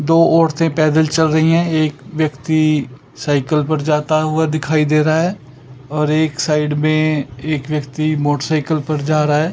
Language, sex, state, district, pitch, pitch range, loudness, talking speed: Hindi, male, Chandigarh, Chandigarh, 155 Hz, 150-155 Hz, -16 LUFS, 170 wpm